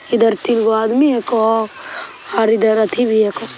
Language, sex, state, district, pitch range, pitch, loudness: Hindi, female, Bihar, Begusarai, 220-245 Hz, 225 Hz, -15 LUFS